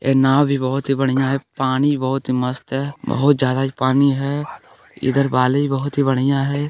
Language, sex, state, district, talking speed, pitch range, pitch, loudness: Hindi, male, Bihar, Lakhisarai, 195 wpm, 130-140 Hz, 135 Hz, -18 LUFS